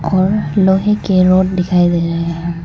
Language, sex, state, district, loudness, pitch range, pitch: Hindi, female, Arunachal Pradesh, Lower Dibang Valley, -14 LUFS, 170-190 Hz, 185 Hz